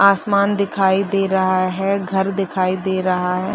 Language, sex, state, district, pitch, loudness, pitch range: Hindi, female, Bihar, Saharsa, 190 Hz, -18 LUFS, 185-195 Hz